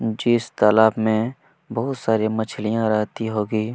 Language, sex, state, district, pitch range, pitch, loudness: Hindi, male, Chhattisgarh, Kabirdham, 110-115 Hz, 110 Hz, -21 LUFS